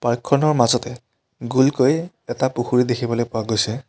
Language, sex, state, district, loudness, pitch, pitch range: Assamese, male, Assam, Kamrup Metropolitan, -19 LUFS, 120 Hz, 120-130 Hz